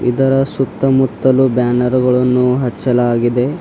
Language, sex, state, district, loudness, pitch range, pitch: Kannada, female, Karnataka, Bidar, -14 LUFS, 125-135 Hz, 125 Hz